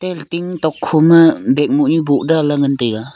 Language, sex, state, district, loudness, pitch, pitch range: Wancho, male, Arunachal Pradesh, Longding, -14 LUFS, 155 Hz, 140-165 Hz